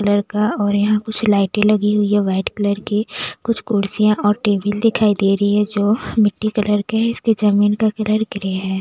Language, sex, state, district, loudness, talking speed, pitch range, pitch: Hindi, female, Bihar, West Champaran, -17 LUFS, 220 wpm, 205-215 Hz, 210 Hz